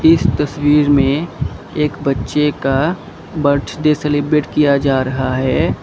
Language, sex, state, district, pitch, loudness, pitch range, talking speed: Hindi, male, Assam, Kamrup Metropolitan, 145 Hz, -16 LUFS, 135-150 Hz, 125 wpm